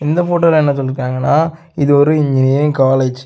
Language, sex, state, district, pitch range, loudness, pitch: Tamil, male, Tamil Nadu, Kanyakumari, 135-160 Hz, -13 LUFS, 145 Hz